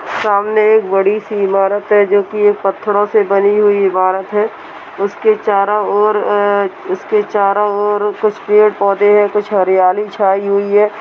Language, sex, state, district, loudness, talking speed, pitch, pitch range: Hindi, female, Uttar Pradesh, Budaun, -13 LUFS, 165 wpm, 205 Hz, 200-210 Hz